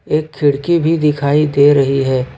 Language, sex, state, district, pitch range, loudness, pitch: Hindi, male, Jharkhand, Ranchi, 140-150 Hz, -14 LUFS, 145 Hz